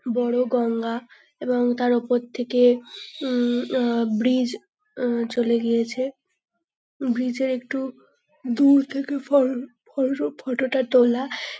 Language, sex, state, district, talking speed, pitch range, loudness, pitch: Bengali, female, West Bengal, North 24 Parganas, 105 wpm, 240-265 Hz, -23 LUFS, 250 Hz